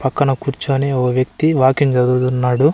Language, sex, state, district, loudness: Telugu, male, Andhra Pradesh, Annamaya, -16 LUFS